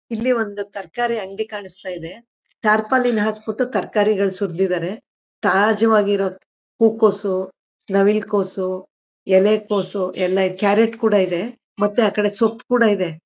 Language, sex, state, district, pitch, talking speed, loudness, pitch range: Kannada, female, Karnataka, Mysore, 205 Hz, 125 wpm, -19 LUFS, 190-220 Hz